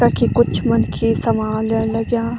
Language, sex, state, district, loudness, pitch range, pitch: Garhwali, female, Uttarakhand, Tehri Garhwal, -18 LUFS, 220-230 Hz, 225 Hz